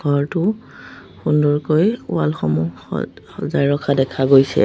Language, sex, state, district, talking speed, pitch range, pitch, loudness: Assamese, female, Assam, Sonitpur, 115 wpm, 135-155 Hz, 140 Hz, -18 LUFS